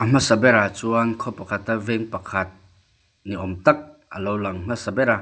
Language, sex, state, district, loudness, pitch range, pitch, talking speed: Mizo, male, Mizoram, Aizawl, -22 LUFS, 100-115 Hz, 105 Hz, 175 wpm